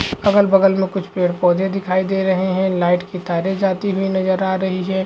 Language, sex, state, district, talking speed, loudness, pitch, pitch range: Hindi, male, Chhattisgarh, Raigarh, 225 wpm, -18 LUFS, 190 Hz, 185-195 Hz